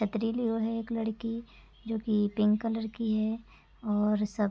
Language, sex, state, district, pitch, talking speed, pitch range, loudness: Hindi, female, Uttar Pradesh, Gorakhpur, 220 Hz, 170 wpm, 210-225 Hz, -31 LUFS